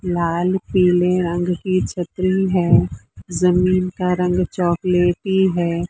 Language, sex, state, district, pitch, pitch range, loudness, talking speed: Hindi, female, Maharashtra, Mumbai Suburban, 180 Hz, 175-185 Hz, -18 LUFS, 110 wpm